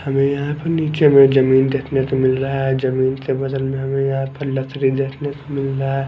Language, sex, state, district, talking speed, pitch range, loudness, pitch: Hindi, male, Maharashtra, Gondia, 225 wpm, 135-140 Hz, -18 LUFS, 135 Hz